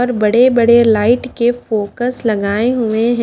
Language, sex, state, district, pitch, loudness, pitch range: Hindi, female, Haryana, Jhajjar, 235 Hz, -14 LUFS, 220-245 Hz